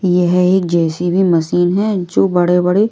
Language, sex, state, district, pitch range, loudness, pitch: Hindi, female, Maharashtra, Washim, 175-190 Hz, -14 LUFS, 180 Hz